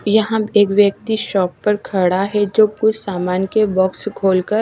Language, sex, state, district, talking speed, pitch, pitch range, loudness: Hindi, female, Odisha, Malkangiri, 195 wpm, 205 Hz, 190-215 Hz, -16 LUFS